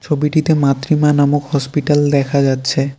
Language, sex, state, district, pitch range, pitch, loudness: Bengali, male, West Bengal, Cooch Behar, 140-150 Hz, 145 Hz, -15 LUFS